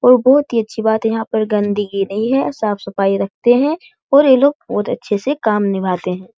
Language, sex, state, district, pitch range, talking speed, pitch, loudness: Hindi, female, Bihar, Jahanabad, 205-260 Hz, 215 wpm, 220 Hz, -16 LUFS